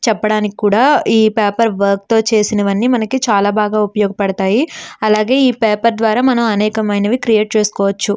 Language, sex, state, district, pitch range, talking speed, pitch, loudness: Telugu, female, Andhra Pradesh, Srikakulam, 205-230 Hz, 145 wpm, 215 Hz, -14 LUFS